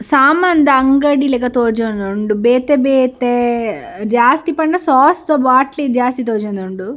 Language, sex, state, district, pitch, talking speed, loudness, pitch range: Tulu, female, Karnataka, Dakshina Kannada, 255 Hz, 105 wpm, -14 LUFS, 230-285 Hz